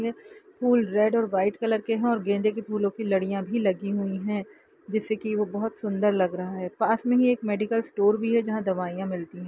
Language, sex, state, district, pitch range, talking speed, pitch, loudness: Hindi, female, Bihar, Saran, 195-225 Hz, 240 wpm, 210 Hz, -26 LUFS